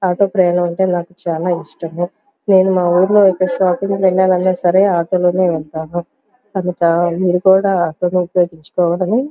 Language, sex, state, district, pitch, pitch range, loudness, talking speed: Telugu, female, Andhra Pradesh, Guntur, 180 Hz, 175-190 Hz, -15 LUFS, 140 wpm